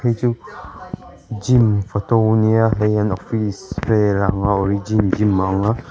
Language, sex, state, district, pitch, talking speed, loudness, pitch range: Mizo, male, Mizoram, Aizawl, 105 Hz, 150 wpm, -18 LUFS, 100-110 Hz